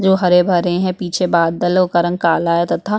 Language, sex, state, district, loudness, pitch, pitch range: Hindi, female, Chhattisgarh, Bastar, -15 LUFS, 180 Hz, 175-185 Hz